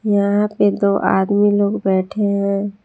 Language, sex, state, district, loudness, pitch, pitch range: Hindi, female, Jharkhand, Palamu, -17 LUFS, 200 Hz, 200-205 Hz